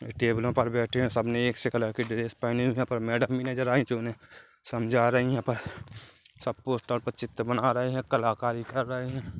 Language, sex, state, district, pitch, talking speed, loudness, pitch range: Hindi, male, Chhattisgarh, Kabirdham, 120 Hz, 230 wpm, -29 LUFS, 115-125 Hz